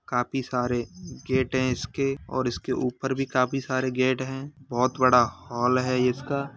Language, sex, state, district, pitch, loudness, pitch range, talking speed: Hindi, male, Uttar Pradesh, Hamirpur, 130 Hz, -26 LUFS, 125-135 Hz, 165 wpm